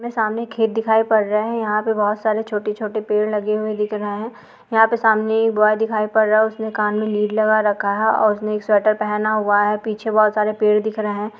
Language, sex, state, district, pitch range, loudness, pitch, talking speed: Hindi, female, Chhattisgarh, Balrampur, 210-220 Hz, -19 LUFS, 215 Hz, 265 wpm